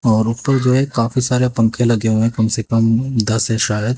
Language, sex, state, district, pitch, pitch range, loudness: Hindi, male, Haryana, Jhajjar, 115 Hz, 110-125 Hz, -16 LUFS